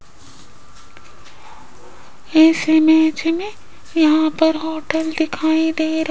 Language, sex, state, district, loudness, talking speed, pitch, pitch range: Hindi, female, Rajasthan, Jaipur, -17 LUFS, 90 wpm, 320 Hz, 315-320 Hz